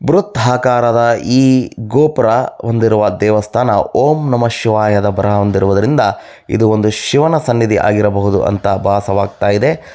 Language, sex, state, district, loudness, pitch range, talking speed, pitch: Kannada, male, Karnataka, Bellary, -13 LUFS, 100-125 Hz, 115 wpm, 110 Hz